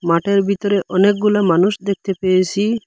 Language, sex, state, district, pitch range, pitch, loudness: Bengali, male, Assam, Hailakandi, 185-205 Hz, 195 Hz, -16 LUFS